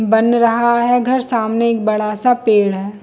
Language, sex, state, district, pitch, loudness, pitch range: Hindi, female, Chhattisgarh, Bilaspur, 230 Hz, -15 LUFS, 215-240 Hz